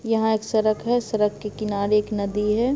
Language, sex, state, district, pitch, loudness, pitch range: Hindi, female, Bihar, Muzaffarpur, 215 Hz, -23 LUFS, 210-225 Hz